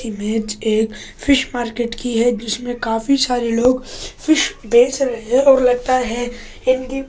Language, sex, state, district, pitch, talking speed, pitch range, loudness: Hindi, male, Delhi, New Delhi, 245 Hz, 160 wpm, 230-255 Hz, -17 LUFS